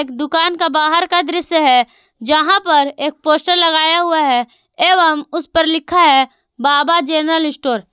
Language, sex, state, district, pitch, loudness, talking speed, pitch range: Hindi, female, Jharkhand, Garhwa, 315 Hz, -12 LUFS, 165 wpm, 290-340 Hz